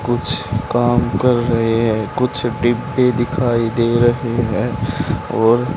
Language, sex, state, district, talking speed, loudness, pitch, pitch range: Hindi, male, Haryana, Charkhi Dadri, 125 wpm, -17 LUFS, 120 Hz, 115-125 Hz